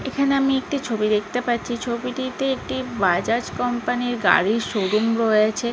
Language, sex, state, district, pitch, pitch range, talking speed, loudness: Bengali, female, West Bengal, Malda, 240 Hz, 215-260 Hz, 145 wpm, -22 LUFS